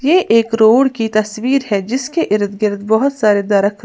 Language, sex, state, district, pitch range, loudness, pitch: Hindi, female, Uttar Pradesh, Lalitpur, 210-260 Hz, -14 LUFS, 220 Hz